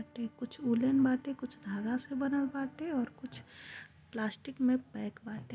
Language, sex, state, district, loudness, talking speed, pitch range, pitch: Bhojpuri, female, Uttar Pradesh, Gorakhpur, -35 LUFS, 150 wpm, 225-270 Hz, 255 Hz